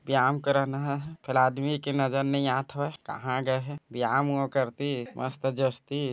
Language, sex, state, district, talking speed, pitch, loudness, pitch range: Chhattisgarhi, male, Chhattisgarh, Bilaspur, 175 wpm, 135 Hz, -28 LUFS, 130-140 Hz